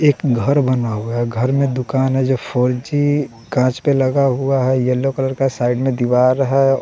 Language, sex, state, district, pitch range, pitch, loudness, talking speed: Hindi, male, Bihar, West Champaran, 125-135 Hz, 130 Hz, -17 LUFS, 210 wpm